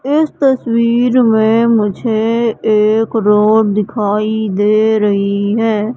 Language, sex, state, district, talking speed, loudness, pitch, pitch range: Hindi, female, Madhya Pradesh, Katni, 100 wpm, -13 LUFS, 220 Hz, 210-230 Hz